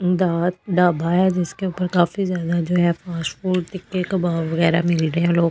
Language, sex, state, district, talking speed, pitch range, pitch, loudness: Hindi, female, Delhi, New Delhi, 195 wpm, 170-185 Hz, 175 Hz, -20 LUFS